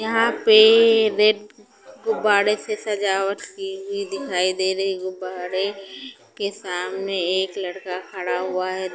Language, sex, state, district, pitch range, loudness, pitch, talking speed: Hindi, female, Punjab, Pathankot, 185-220 Hz, -21 LUFS, 200 Hz, 140 wpm